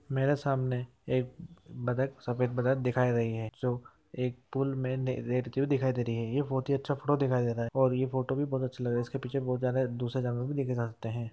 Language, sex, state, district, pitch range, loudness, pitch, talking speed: Hindi, male, Andhra Pradesh, Visakhapatnam, 125-135 Hz, -31 LUFS, 130 Hz, 115 wpm